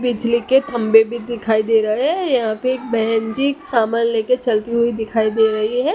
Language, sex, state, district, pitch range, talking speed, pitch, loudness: Hindi, male, Gujarat, Gandhinagar, 220-250 Hz, 210 wpm, 230 Hz, -18 LUFS